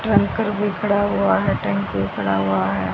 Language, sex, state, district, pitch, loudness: Hindi, female, Haryana, Rohtak, 100 Hz, -20 LUFS